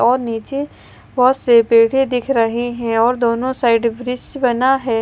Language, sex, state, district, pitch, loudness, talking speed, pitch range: Hindi, female, Delhi, New Delhi, 240 Hz, -16 LUFS, 165 wpm, 230-260 Hz